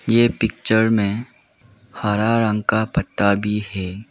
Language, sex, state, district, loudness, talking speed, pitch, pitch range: Hindi, male, Arunachal Pradesh, Lower Dibang Valley, -19 LUFS, 130 wpm, 110 Hz, 105-115 Hz